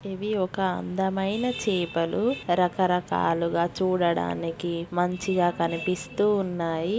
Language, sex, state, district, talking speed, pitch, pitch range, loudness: Telugu, female, Telangana, Nalgonda, 85 wpm, 180 Hz, 170-195 Hz, -26 LUFS